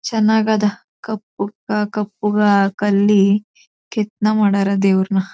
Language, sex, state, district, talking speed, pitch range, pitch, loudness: Kannada, female, Karnataka, Chamarajanagar, 80 wpm, 200-215 Hz, 210 Hz, -17 LUFS